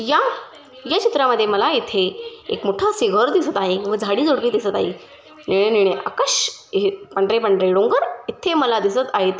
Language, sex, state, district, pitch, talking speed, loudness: Marathi, female, Maharashtra, Sindhudurg, 285 Hz, 170 wpm, -19 LUFS